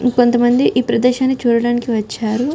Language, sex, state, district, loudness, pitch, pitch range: Telugu, female, Telangana, Karimnagar, -15 LUFS, 240 Hz, 235-250 Hz